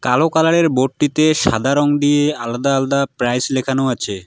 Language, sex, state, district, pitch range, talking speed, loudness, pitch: Bengali, male, West Bengal, Alipurduar, 125-150 Hz, 155 wpm, -16 LUFS, 140 Hz